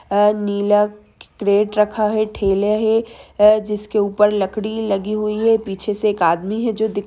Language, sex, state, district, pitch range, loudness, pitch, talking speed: Hindi, female, Jharkhand, Sahebganj, 205-215 Hz, -18 LUFS, 210 Hz, 170 wpm